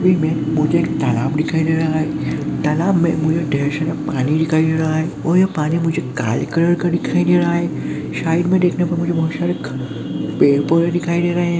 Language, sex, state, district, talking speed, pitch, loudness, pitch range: Hindi, male, Chhattisgarh, Kabirdham, 225 wpm, 160 Hz, -18 LUFS, 155-170 Hz